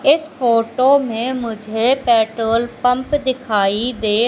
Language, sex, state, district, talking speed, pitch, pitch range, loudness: Hindi, female, Madhya Pradesh, Katni, 110 wpm, 240 Hz, 225-260 Hz, -17 LUFS